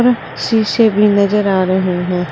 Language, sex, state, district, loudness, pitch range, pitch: Hindi, female, Uttar Pradesh, Saharanpur, -14 LUFS, 180-220 Hz, 200 Hz